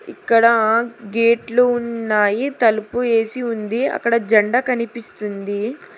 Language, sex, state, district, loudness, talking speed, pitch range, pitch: Telugu, female, Telangana, Hyderabad, -18 LUFS, 90 wpm, 220-245 Hz, 230 Hz